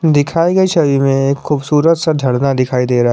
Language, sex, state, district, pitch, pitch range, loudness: Hindi, male, Jharkhand, Garhwa, 145 Hz, 135-160 Hz, -13 LUFS